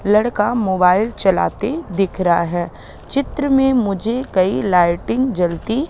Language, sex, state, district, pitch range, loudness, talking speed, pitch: Hindi, female, Madhya Pradesh, Katni, 180-240 Hz, -17 LUFS, 120 wpm, 195 Hz